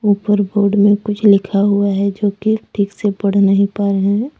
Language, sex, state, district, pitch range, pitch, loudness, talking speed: Hindi, female, Jharkhand, Deoghar, 200-205 Hz, 200 Hz, -15 LUFS, 220 wpm